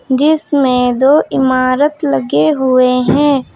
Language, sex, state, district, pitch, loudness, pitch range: Hindi, female, Uttar Pradesh, Lucknow, 260 Hz, -12 LUFS, 250-290 Hz